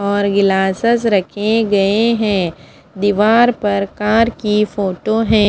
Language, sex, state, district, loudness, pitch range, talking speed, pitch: Hindi, female, Punjab, Fazilka, -15 LUFS, 200-220 Hz, 120 wpm, 205 Hz